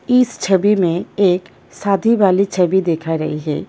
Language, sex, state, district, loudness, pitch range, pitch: Hindi, female, Delhi, New Delhi, -16 LUFS, 170-200 Hz, 190 Hz